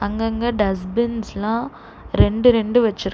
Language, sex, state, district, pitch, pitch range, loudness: Tamil, female, Tamil Nadu, Chennai, 225 Hz, 205-235 Hz, -19 LUFS